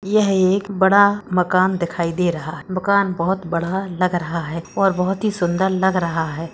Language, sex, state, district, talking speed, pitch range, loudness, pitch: Hindi, female, Bihar, East Champaran, 130 wpm, 170-190 Hz, -19 LUFS, 185 Hz